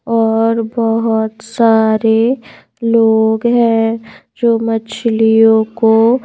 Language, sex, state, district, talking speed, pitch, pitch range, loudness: Hindi, female, Madhya Pradesh, Bhopal, 75 wpm, 225 Hz, 220-230 Hz, -13 LUFS